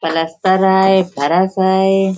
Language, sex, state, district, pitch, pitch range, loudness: Hindi, female, Uttar Pradesh, Budaun, 190 Hz, 170-190 Hz, -14 LUFS